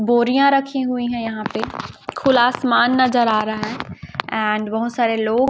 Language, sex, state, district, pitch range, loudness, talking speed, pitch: Hindi, female, Chhattisgarh, Raipur, 220-255 Hz, -19 LUFS, 175 wpm, 240 Hz